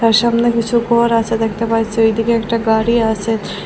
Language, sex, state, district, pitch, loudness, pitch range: Bengali, female, Assam, Hailakandi, 230 Hz, -15 LUFS, 225-235 Hz